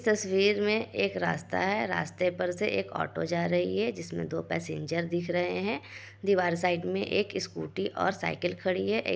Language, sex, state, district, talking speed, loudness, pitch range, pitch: Hindi, female, Bihar, Kishanganj, 195 wpm, -30 LUFS, 170-195 Hz, 180 Hz